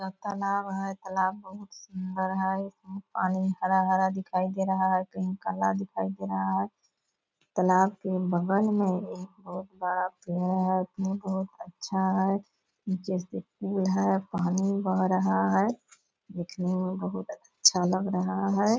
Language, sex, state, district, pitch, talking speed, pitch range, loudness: Hindi, female, Bihar, Purnia, 190 Hz, 155 wpm, 185-195 Hz, -28 LUFS